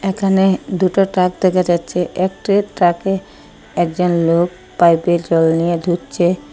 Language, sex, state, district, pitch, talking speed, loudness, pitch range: Bengali, female, Assam, Hailakandi, 180 Hz, 120 wpm, -16 LUFS, 175-190 Hz